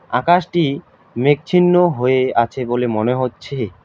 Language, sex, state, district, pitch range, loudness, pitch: Bengali, male, West Bengal, Alipurduar, 120-170 Hz, -17 LUFS, 130 Hz